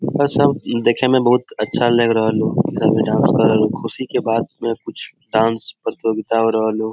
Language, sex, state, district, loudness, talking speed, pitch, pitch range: Hindi, male, Bihar, Jamui, -17 LUFS, 155 wpm, 115 Hz, 110-125 Hz